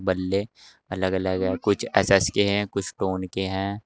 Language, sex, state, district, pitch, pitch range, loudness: Hindi, male, Uttar Pradesh, Saharanpur, 95 Hz, 95-100 Hz, -24 LUFS